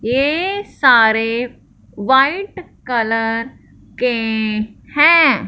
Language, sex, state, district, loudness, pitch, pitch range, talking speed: Hindi, male, Punjab, Fazilka, -15 LUFS, 245 Hz, 225-295 Hz, 65 wpm